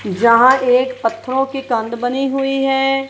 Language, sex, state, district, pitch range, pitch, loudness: Hindi, female, Punjab, Kapurthala, 235-270 Hz, 255 Hz, -15 LUFS